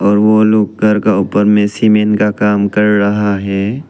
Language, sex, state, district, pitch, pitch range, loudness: Hindi, male, Arunachal Pradesh, Lower Dibang Valley, 105 Hz, 100-105 Hz, -12 LUFS